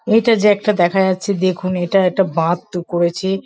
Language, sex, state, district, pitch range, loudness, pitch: Bengali, female, West Bengal, Kolkata, 175-200 Hz, -16 LUFS, 190 Hz